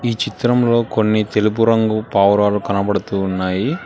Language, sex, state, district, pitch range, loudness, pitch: Telugu, male, Telangana, Hyderabad, 100-115 Hz, -17 LUFS, 105 Hz